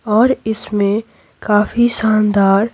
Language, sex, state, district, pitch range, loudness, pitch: Hindi, female, Bihar, Patna, 210-225 Hz, -15 LUFS, 215 Hz